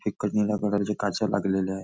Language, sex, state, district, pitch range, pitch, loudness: Marathi, male, Maharashtra, Nagpur, 95-105 Hz, 100 Hz, -26 LUFS